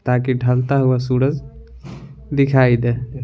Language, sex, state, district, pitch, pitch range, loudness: Hindi, male, Bihar, Patna, 125 Hz, 125-135 Hz, -17 LUFS